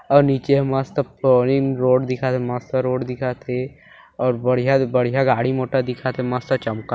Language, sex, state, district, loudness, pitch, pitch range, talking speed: Hindi, male, Chhattisgarh, Bilaspur, -20 LUFS, 130 Hz, 125-135 Hz, 175 wpm